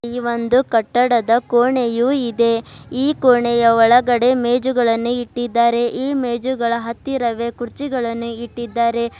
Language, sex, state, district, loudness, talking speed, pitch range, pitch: Kannada, female, Karnataka, Bidar, -17 LUFS, 100 wpm, 235-250 Hz, 240 Hz